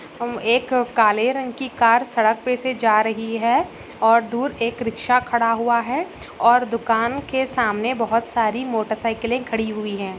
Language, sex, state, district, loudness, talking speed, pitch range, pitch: Hindi, female, Maharashtra, Solapur, -20 LUFS, 175 wpm, 225-250 Hz, 235 Hz